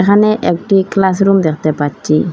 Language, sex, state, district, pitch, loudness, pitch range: Bengali, female, Assam, Hailakandi, 190 Hz, -13 LUFS, 160-195 Hz